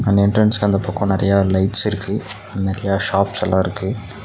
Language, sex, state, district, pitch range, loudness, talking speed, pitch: Tamil, male, Tamil Nadu, Nilgiris, 95-105 Hz, -18 LUFS, 140 wpm, 100 Hz